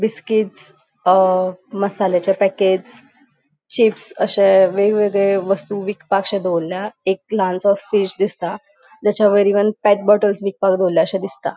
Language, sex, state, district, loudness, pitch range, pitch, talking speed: Konkani, female, Goa, North and South Goa, -17 LUFS, 190-205 Hz, 200 Hz, 115 wpm